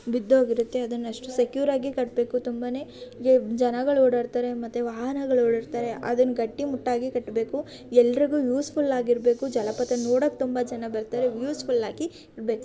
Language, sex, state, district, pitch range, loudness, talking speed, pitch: Kannada, female, Karnataka, Shimoga, 240-260 Hz, -25 LUFS, 125 wpm, 245 Hz